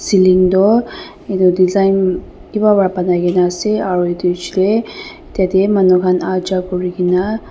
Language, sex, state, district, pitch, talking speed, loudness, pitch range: Nagamese, female, Nagaland, Dimapur, 185 Hz, 135 wpm, -14 LUFS, 180-200 Hz